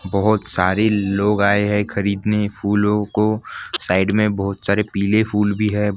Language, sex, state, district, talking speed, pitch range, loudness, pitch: Hindi, male, Maharashtra, Gondia, 160 wpm, 100-105 Hz, -19 LUFS, 105 Hz